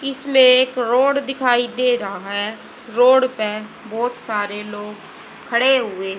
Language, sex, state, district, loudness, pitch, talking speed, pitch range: Hindi, female, Haryana, Rohtak, -18 LUFS, 240 Hz, 135 wpm, 210-255 Hz